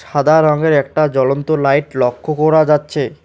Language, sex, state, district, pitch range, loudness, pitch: Bengali, male, West Bengal, Alipurduar, 140-155 Hz, -14 LUFS, 150 Hz